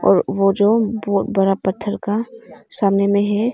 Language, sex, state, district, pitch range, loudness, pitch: Hindi, female, Arunachal Pradesh, Longding, 195-215 Hz, -17 LUFS, 205 Hz